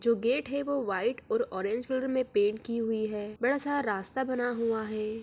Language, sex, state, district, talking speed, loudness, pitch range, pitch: Hindi, female, Bihar, Araria, 205 wpm, -30 LUFS, 215-265 Hz, 235 Hz